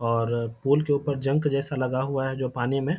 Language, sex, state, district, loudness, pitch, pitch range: Hindi, male, Bihar, Jamui, -26 LUFS, 135 Hz, 125-140 Hz